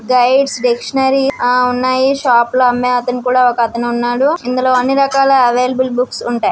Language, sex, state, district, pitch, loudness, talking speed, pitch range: Telugu, female, Andhra Pradesh, Srikakulam, 250 Hz, -13 LUFS, 145 wpm, 245-265 Hz